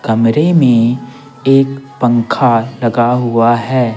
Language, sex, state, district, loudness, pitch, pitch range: Hindi, male, Bihar, Patna, -12 LUFS, 120 Hz, 115-135 Hz